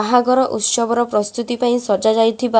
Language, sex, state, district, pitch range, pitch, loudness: Odia, female, Odisha, Khordha, 220-245 Hz, 235 Hz, -17 LUFS